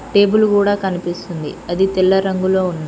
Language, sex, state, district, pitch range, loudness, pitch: Telugu, female, Telangana, Mahabubabad, 175-200 Hz, -16 LUFS, 190 Hz